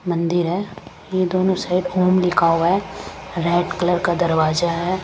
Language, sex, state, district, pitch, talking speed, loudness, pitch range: Hindi, female, Punjab, Kapurthala, 180 Hz, 165 wpm, -19 LUFS, 170-185 Hz